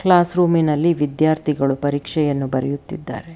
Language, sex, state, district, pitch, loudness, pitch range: Kannada, female, Karnataka, Bangalore, 150 Hz, -19 LUFS, 140-165 Hz